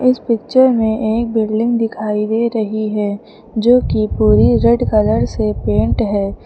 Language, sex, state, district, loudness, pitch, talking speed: Hindi, male, Uttar Pradesh, Lucknow, -15 LUFS, 215 Hz, 150 wpm